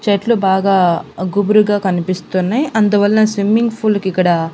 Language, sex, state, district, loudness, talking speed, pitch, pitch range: Telugu, female, Andhra Pradesh, Annamaya, -14 LUFS, 120 wpm, 200 Hz, 185-215 Hz